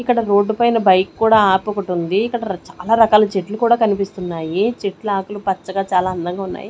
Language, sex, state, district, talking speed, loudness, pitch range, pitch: Telugu, female, Andhra Pradesh, Sri Satya Sai, 160 wpm, -17 LUFS, 190-220 Hz, 200 Hz